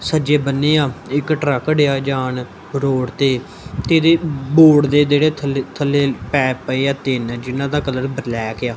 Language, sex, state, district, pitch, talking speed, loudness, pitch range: Punjabi, male, Punjab, Kapurthala, 140 Hz, 180 wpm, -17 LUFS, 130-145 Hz